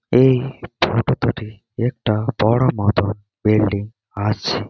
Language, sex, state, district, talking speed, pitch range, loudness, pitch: Bengali, male, West Bengal, Malda, 115 wpm, 105-125 Hz, -19 LUFS, 110 Hz